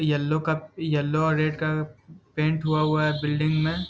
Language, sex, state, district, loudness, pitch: Hindi, male, Bihar, Muzaffarpur, -25 LUFS, 155 Hz